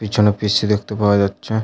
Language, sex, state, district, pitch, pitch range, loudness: Bengali, male, West Bengal, Paschim Medinipur, 105 Hz, 100-105 Hz, -17 LUFS